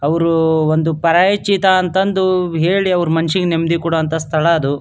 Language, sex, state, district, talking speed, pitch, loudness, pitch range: Kannada, male, Karnataka, Dharwad, 135 wpm, 170 Hz, -15 LUFS, 160-185 Hz